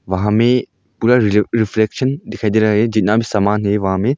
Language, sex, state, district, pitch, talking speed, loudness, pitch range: Hindi, male, Arunachal Pradesh, Longding, 110 Hz, 215 wpm, -16 LUFS, 105-115 Hz